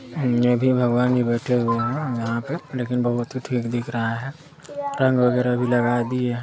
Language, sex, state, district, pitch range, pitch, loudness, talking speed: Hindi, male, Chhattisgarh, Sarguja, 120-130 Hz, 125 Hz, -22 LUFS, 215 wpm